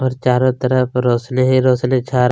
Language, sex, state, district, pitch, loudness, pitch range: Hindi, male, Chhattisgarh, Kabirdham, 130 Hz, -16 LUFS, 125-130 Hz